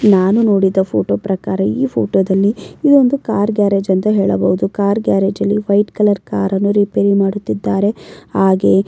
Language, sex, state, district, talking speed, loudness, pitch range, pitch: Kannada, female, Karnataka, Mysore, 140 wpm, -15 LUFS, 190-205 Hz, 200 Hz